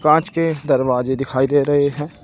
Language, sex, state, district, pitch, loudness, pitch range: Hindi, male, Uttar Pradesh, Shamli, 145 Hz, -18 LUFS, 135-155 Hz